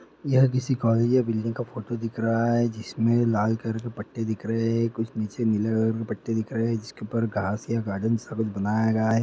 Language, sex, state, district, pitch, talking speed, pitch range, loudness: Hindi, male, Bihar, Lakhisarai, 115 Hz, 225 wpm, 110-115 Hz, -26 LUFS